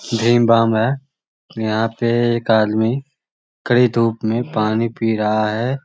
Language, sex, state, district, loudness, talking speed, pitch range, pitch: Magahi, male, Bihar, Lakhisarai, -17 LUFS, 155 wpm, 110-120 Hz, 115 Hz